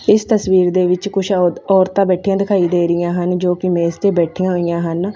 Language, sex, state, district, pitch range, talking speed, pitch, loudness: Punjabi, female, Punjab, Fazilka, 175-195 Hz, 185 wpm, 180 Hz, -15 LUFS